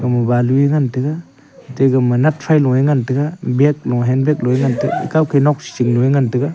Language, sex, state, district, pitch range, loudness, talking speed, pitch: Wancho, male, Arunachal Pradesh, Longding, 125-145 Hz, -15 LUFS, 155 wpm, 135 Hz